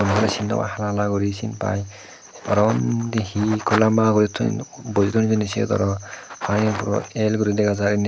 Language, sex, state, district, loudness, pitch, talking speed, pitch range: Chakma, male, Tripura, Dhalai, -21 LUFS, 105 Hz, 195 wpm, 100-110 Hz